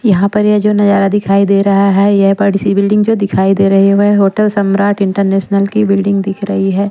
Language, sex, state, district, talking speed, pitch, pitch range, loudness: Hindi, female, Bihar, Patna, 225 wpm, 200 Hz, 195-205 Hz, -11 LUFS